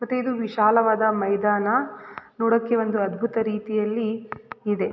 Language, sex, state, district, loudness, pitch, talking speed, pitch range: Kannada, female, Karnataka, Raichur, -23 LUFS, 220 Hz, 110 wpm, 210-230 Hz